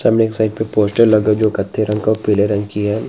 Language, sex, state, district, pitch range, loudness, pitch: Hindi, male, West Bengal, North 24 Parganas, 105-110 Hz, -16 LUFS, 110 Hz